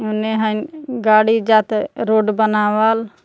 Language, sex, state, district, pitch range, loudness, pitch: Magahi, female, Jharkhand, Palamu, 215-225 Hz, -16 LUFS, 220 Hz